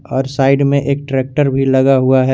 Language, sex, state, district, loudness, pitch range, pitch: Hindi, male, Jharkhand, Garhwa, -14 LUFS, 130-140 Hz, 135 Hz